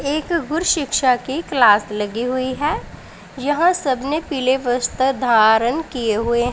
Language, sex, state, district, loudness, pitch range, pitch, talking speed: Hindi, female, Punjab, Pathankot, -18 LUFS, 240-300 Hz, 260 Hz, 145 wpm